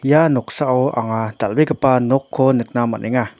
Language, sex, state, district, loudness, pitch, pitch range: Garo, male, Meghalaya, North Garo Hills, -17 LUFS, 130 Hz, 115-135 Hz